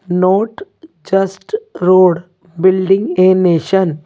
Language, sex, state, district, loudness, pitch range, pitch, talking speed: Hindi, female, Delhi, New Delhi, -13 LUFS, 180-195 Hz, 185 Hz, 90 wpm